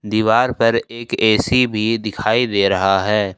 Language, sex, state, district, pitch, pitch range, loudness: Hindi, male, Jharkhand, Ranchi, 110 Hz, 100-115 Hz, -16 LUFS